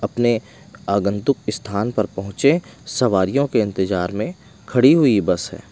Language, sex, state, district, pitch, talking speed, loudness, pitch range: Hindi, male, Odisha, Malkangiri, 105 Hz, 135 wpm, -19 LUFS, 100-120 Hz